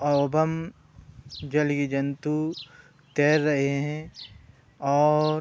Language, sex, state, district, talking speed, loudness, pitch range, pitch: Hindi, male, Uttar Pradesh, Budaun, 75 wpm, -25 LUFS, 140-155 Hz, 145 Hz